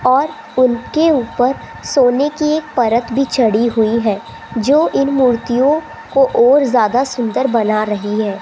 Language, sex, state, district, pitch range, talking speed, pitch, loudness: Hindi, female, Rajasthan, Jaipur, 230-280 Hz, 150 wpm, 255 Hz, -15 LUFS